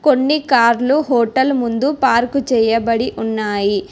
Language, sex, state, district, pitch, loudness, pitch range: Telugu, female, Telangana, Hyderabad, 240 Hz, -16 LUFS, 230-275 Hz